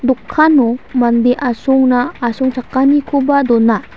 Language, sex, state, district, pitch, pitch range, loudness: Garo, female, Meghalaya, West Garo Hills, 255 Hz, 240-275 Hz, -13 LUFS